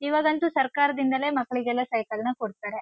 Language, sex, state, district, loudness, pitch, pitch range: Kannada, female, Karnataka, Shimoga, -26 LUFS, 260 Hz, 240-285 Hz